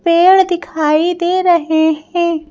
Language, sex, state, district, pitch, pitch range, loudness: Hindi, female, Madhya Pradesh, Bhopal, 335 Hz, 315-355 Hz, -13 LUFS